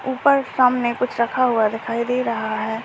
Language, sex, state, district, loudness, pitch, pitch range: Hindi, male, Rajasthan, Churu, -20 LUFS, 240 Hz, 230-255 Hz